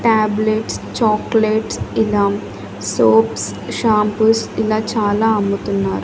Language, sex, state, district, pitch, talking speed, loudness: Telugu, female, Andhra Pradesh, Annamaya, 210 Hz, 80 wpm, -17 LUFS